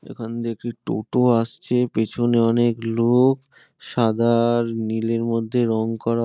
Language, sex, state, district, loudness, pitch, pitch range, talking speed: Bengali, male, West Bengal, Malda, -21 LUFS, 115 Hz, 115-120 Hz, 115 wpm